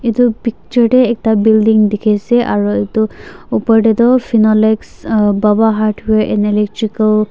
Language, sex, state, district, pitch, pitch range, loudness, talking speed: Nagamese, female, Nagaland, Dimapur, 220 Hz, 210-230 Hz, -13 LUFS, 165 wpm